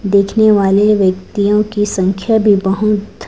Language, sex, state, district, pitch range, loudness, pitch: Hindi, female, Chhattisgarh, Raipur, 195-210 Hz, -13 LUFS, 205 Hz